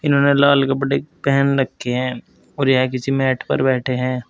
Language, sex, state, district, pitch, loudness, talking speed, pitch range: Hindi, male, Uttar Pradesh, Saharanpur, 135 Hz, -18 LUFS, 180 wpm, 130-140 Hz